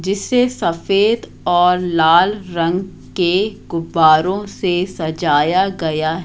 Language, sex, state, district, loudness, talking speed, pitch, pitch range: Hindi, female, Madhya Pradesh, Katni, -16 LUFS, 95 wpm, 180 Hz, 165-195 Hz